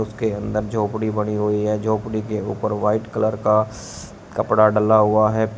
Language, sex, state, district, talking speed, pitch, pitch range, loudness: Hindi, male, Uttar Pradesh, Shamli, 185 wpm, 110 Hz, 105-110 Hz, -20 LUFS